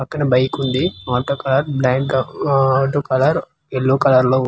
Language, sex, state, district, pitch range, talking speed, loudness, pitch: Telugu, male, Andhra Pradesh, Manyam, 130-140 Hz, 175 wpm, -17 LUFS, 135 Hz